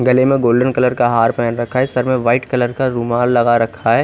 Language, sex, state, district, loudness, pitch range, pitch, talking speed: Hindi, male, Odisha, Khordha, -15 LUFS, 120-130 Hz, 120 Hz, 265 wpm